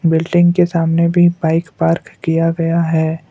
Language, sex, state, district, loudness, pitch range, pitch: Hindi, male, Assam, Kamrup Metropolitan, -15 LUFS, 165-170 Hz, 165 Hz